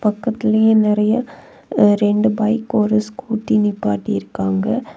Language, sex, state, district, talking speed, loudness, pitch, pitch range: Tamil, female, Tamil Nadu, Kanyakumari, 95 wpm, -17 LUFS, 215 Hz, 205-220 Hz